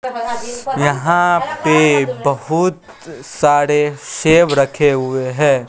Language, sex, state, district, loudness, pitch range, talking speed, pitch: Hindi, female, Bihar, West Champaran, -15 LUFS, 140-175 Hz, 85 wpm, 150 Hz